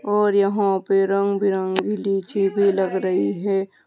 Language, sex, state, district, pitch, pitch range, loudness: Hindi, female, Uttar Pradesh, Saharanpur, 195 Hz, 190-200 Hz, -21 LUFS